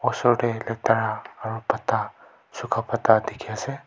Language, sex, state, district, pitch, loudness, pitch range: Nagamese, male, Nagaland, Kohima, 115 Hz, -24 LUFS, 110-120 Hz